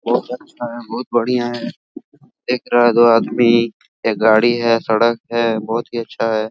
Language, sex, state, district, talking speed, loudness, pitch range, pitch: Hindi, male, Jharkhand, Sahebganj, 185 wpm, -17 LUFS, 115-120 Hz, 115 Hz